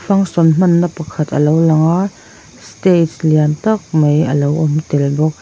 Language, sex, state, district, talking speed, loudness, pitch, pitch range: Mizo, female, Mizoram, Aizawl, 175 wpm, -14 LUFS, 155 Hz, 150-175 Hz